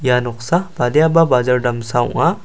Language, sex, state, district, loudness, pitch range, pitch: Garo, male, Meghalaya, South Garo Hills, -16 LUFS, 125-165 Hz, 125 Hz